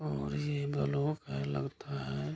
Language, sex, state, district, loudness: Hindi, male, Bihar, Kishanganj, -35 LUFS